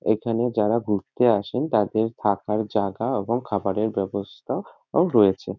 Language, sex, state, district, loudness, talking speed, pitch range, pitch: Bengali, male, West Bengal, North 24 Parganas, -23 LUFS, 130 wpm, 100-115 Hz, 105 Hz